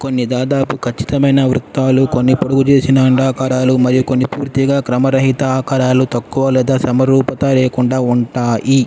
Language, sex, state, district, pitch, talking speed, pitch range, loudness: Telugu, male, Andhra Pradesh, Guntur, 130 Hz, 130 wpm, 130-135 Hz, -14 LUFS